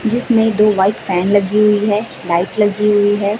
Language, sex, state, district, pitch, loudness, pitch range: Hindi, female, Chhattisgarh, Raipur, 205 Hz, -14 LUFS, 200-210 Hz